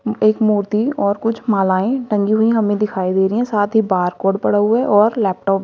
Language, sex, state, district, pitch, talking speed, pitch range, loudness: Hindi, female, Haryana, Rohtak, 210 Hz, 225 wpm, 195-220 Hz, -16 LUFS